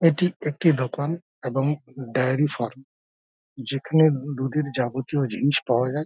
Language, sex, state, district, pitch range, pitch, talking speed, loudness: Bengali, male, West Bengal, Dakshin Dinajpur, 130-150 Hz, 135 Hz, 130 wpm, -24 LUFS